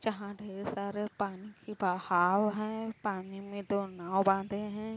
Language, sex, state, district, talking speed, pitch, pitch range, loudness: Hindi, female, Uttar Pradesh, Varanasi, 155 wpm, 200 Hz, 195-210 Hz, -33 LUFS